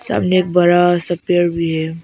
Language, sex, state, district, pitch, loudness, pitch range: Hindi, female, Arunachal Pradesh, Papum Pare, 175 Hz, -15 LUFS, 170-180 Hz